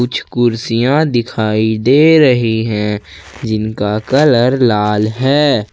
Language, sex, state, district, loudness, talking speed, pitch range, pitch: Hindi, male, Jharkhand, Ranchi, -13 LUFS, 115 wpm, 105-130 Hz, 115 Hz